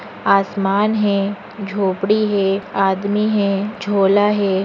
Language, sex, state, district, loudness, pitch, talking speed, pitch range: Hindi, female, Chhattisgarh, Bastar, -17 LUFS, 200 Hz, 115 wpm, 195-205 Hz